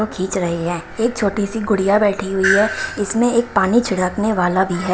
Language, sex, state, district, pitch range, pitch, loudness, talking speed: Hindi, female, Himachal Pradesh, Shimla, 185-220 Hz, 200 Hz, -18 LUFS, 220 wpm